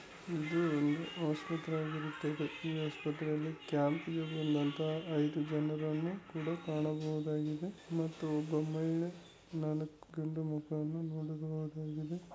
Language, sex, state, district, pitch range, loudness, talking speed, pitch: Kannada, male, Karnataka, Raichur, 155-160 Hz, -37 LUFS, 85 wpm, 155 Hz